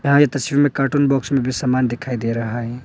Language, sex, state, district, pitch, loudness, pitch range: Hindi, male, Arunachal Pradesh, Longding, 130 Hz, -19 LUFS, 120-140 Hz